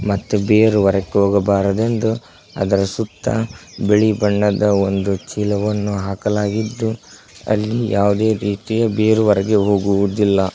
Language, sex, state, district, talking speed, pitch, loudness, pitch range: Kannada, male, Karnataka, Koppal, 95 wpm, 105 Hz, -17 LUFS, 100-110 Hz